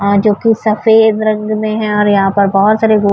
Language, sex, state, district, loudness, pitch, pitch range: Urdu, female, Uttar Pradesh, Budaun, -11 LUFS, 215 Hz, 200-220 Hz